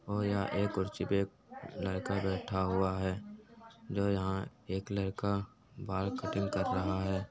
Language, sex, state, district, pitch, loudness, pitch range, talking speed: Hindi, male, Uttar Pradesh, Jyotiba Phule Nagar, 100 Hz, -35 LUFS, 95-100 Hz, 150 wpm